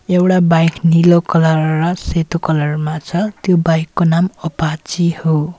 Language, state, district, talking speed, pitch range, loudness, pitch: Nepali, West Bengal, Darjeeling, 160 wpm, 160-175 Hz, -15 LUFS, 165 Hz